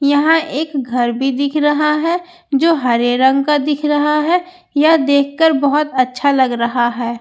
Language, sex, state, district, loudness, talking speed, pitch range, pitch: Hindi, female, Bihar, Katihar, -15 LUFS, 175 wpm, 260-310 Hz, 290 Hz